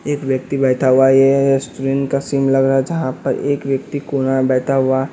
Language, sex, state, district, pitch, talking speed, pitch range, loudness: Hindi, male, Bihar, West Champaran, 135 Hz, 220 wpm, 130-140 Hz, -16 LUFS